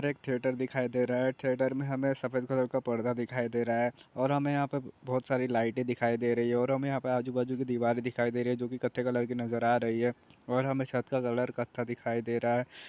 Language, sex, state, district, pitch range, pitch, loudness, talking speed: Hindi, male, Telangana, Nalgonda, 120-130 Hz, 125 Hz, -31 LUFS, 245 wpm